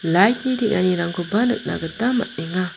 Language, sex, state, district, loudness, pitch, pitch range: Garo, female, Meghalaya, South Garo Hills, -21 LUFS, 195 Hz, 175-240 Hz